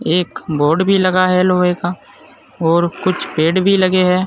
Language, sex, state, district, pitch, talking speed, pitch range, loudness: Hindi, male, Uttar Pradesh, Saharanpur, 180 Hz, 185 wpm, 170-185 Hz, -15 LUFS